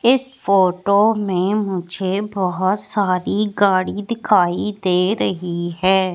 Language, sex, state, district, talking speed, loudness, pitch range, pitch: Hindi, female, Madhya Pradesh, Katni, 105 wpm, -18 LUFS, 185-210 Hz, 195 Hz